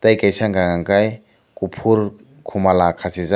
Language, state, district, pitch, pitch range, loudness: Kokborok, Tripura, Dhalai, 100 Hz, 90-110 Hz, -18 LUFS